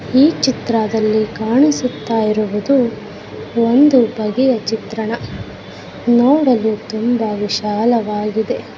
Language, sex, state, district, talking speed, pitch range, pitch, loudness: Kannada, female, Karnataka, Dakshina Kannada, 75 wpm, 215-250 Hz, 225 Hz, -16 LUFS